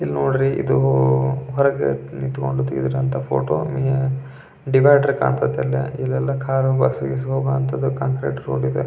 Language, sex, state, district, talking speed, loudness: Kannada, male, Karnataka, Belgaum, 130 wpm, -20 LUFS